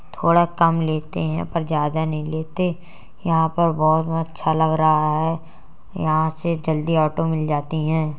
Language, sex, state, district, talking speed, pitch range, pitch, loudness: Hindi, female, Uttar Pradesh, Jalaun, 160 wpm, 155-165 Hz, 160 Hz, -21 LUFS